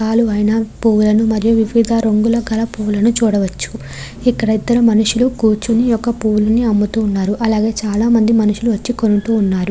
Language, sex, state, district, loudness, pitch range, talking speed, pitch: Telugu, female, Andhra Pradesh, Krishna, -15 LUFS, 210-230 Hz, 150 wpm, 220 Hz